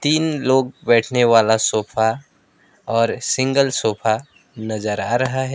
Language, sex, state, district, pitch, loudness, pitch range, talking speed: Hindi, male, West Bengal, Alipurduar, 120 Hz, -18 LUFS, 110-130 Hz, 130 wpm